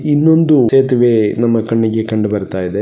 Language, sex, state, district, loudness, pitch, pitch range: Kannada, male, Karnataka, Gulbarga, -13 LUFS, 115 Hz, 105-135 Hz